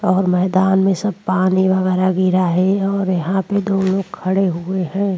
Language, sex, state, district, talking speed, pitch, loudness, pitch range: Hindi, female, Goa, North and South Goa, 185 wpm, 190 Hz, -17 LUFS, 185-195 Hz